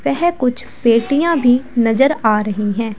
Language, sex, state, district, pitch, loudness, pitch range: Hindi, female, Uttar Pradesh, Saharanpur, 245 Hz, -15 LUFS, 225-275 Hz